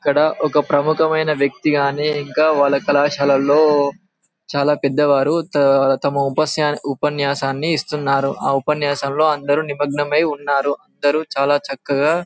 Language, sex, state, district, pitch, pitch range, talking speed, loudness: Telugu, male, Telangana, Karimnagar, 145 Hz, 140-155 Hz, 135 wpm, -17 LUFS